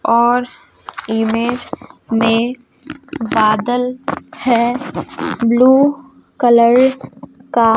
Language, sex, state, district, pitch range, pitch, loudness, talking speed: Hindi, female, Chhattisgarh, Raipur, 230-265 Hz, 245 Hz, -15 LUFS, 60 wpm